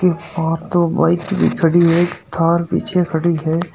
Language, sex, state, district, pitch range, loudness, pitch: Hindi, male, Uttar Pradesh, Shamli, 165-175 Hz, -17 LUFS, 170 Hz